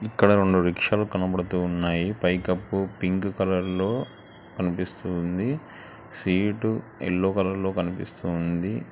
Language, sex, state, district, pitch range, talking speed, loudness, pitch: Telugu, male, Telangana, Hyderabad, 90-100 Hz, 115 wpm, -26 LUFS, 95 Hz